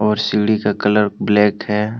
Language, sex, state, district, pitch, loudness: Hindi, male, Jharkhand, Deoghar, 105 Hz, -16 LUFS